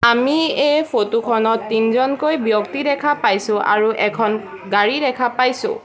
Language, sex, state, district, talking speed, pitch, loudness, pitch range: Assamese, female, Assam, Sonitpur, 135 wpm, 235 Hz, -17 LUFS, 215-285 Hz